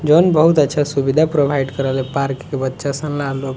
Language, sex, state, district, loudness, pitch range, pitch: Bhojpuri, male, Bihar, Muzaffarpur, -17 LUFS, 135-150 Hz, 140 Hz